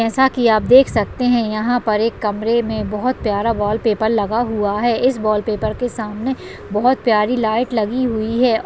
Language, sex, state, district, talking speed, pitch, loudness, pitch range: Hindi, female, Uttarakhand, Uttarkashi, 185 wpm, 225 Hz, -17 LUFS, 215-245 Hz